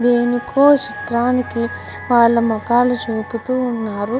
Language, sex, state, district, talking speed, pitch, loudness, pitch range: Telugu, female, Andhra Pradesh, Guntur, 70 wpm, 240 Hz, -17 LUFS, 230-250 Hz